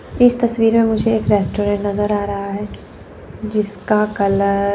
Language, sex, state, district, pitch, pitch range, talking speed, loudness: Hindi, female, Chandigarh, Chandigarh, 210 Hz, 200-220 Hz, 165 wpm, -17 LUFS